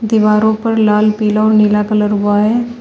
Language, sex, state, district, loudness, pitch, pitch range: Hindi, female, Uttar Pradesh, Shamli, -12 LUFS, 215 Hz, 210-220 Hz